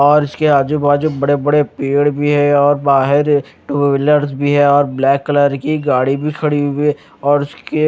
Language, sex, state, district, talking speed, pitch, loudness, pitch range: Hindi, male, Chandigarh, Chandigarh, 190 wpm, 145 Hz, -14 LUFS, 140-145 Hz